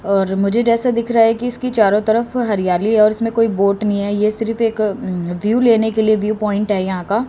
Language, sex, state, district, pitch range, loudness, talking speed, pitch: Hindi, female, Haryana, Rohtak, 200-230 Hz, -16 LUFS, 240 wpm, 215 Hz